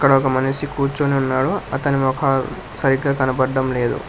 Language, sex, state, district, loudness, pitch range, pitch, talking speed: Telugu, male, Telangana, Hyderabad, -19 LUFS, 130-140 Hz, 135 Hz, 145 wpm